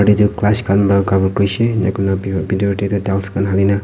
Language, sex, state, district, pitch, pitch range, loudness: Nagamese, male, Nagaland, Kohima, 100 Hz, 95-100 Hz, -16 LUFS